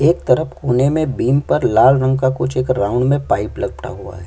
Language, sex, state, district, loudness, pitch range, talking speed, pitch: Hindi, male, Chhattisgarh, Kabirdham, -16 LUFS, 125-140 Hz, 240 wpm, 130 Hz